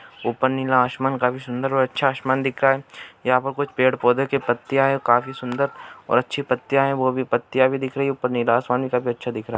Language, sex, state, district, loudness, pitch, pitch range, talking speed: Hindi, male, Andhra Pradesh, Anantapur, -21 LUFS, 130 Hz, 125-135 Hz, 245 wpm